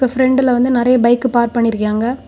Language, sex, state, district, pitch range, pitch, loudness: Tamil, female, Tamil Nadu, Kanyakumari, 235-255 Hz, 245 Hz, -14 LUFS